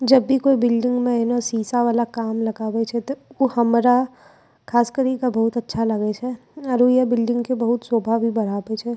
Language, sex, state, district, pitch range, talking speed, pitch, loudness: Angika, female, Bihar, Bhagalpur, 230-250 Hz, 195 wpm, 240 Hz, -20 LUFS